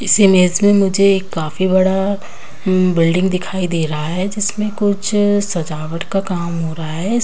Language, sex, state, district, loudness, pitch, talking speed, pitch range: Hindi, female, Bihar, Kishanganj, -16 LUFS, 185 Hz, 150 wpm, 170-200 Hz